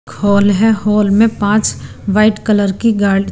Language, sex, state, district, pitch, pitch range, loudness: Hindi, female, Punjab, Pathankot, 205 Hz, 200-215 Hz, -13 LUFS